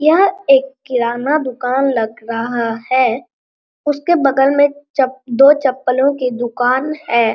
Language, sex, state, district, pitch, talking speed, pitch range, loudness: Hindi, male, Bihar, Araria, 265 Hz, 130 wpm, 240-285 Hz, -15 LUFS